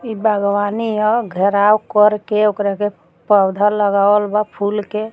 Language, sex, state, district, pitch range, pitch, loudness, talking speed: Bhojpuri, female, Bihar, Muzaffarpur, 200-215 Hz, 210 Hz, -16 LUFS, 150 wpm